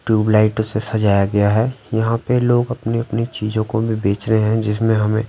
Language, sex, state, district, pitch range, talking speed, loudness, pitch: Hindi, male, Bihar, Patna, 105-115 Hz, 205 wpm, -18 LUFS, 110 Hz